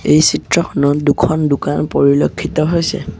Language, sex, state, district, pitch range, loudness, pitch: Assamese, male, Assam, Sonitpur, 140-165 Hz, -14 LUFS, 155 Hz